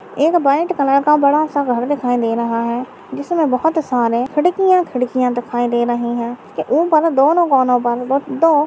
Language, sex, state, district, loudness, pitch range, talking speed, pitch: Hindi, female, Maharashtra, Aurangabad, -16 LUFS, 240-305 Hz, 180 wpm, 270 Hz